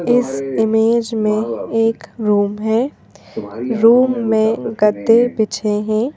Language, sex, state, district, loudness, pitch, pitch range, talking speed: Hindi, female, Madhya Pradesh, Bhopal, -16 LUFS, 220 Hz, 215-235 Hz, 105 wpm